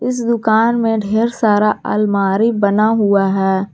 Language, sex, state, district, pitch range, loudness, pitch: Hindi, female, Jharkhand, Garhwa, 200-230 Hz, -15 LUFS, 215 Hz